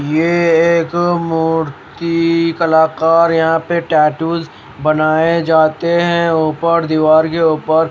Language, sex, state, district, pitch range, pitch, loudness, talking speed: Hindi, male, Haryana, Rohtak, 155-170 Hz, 165 Hz, -14 LUFS, 115 wpm